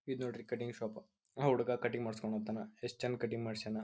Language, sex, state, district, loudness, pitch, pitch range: Kannada, male, Karnataka, Belgaum, -39 LUFS, 120 Hz, 110-125 Hz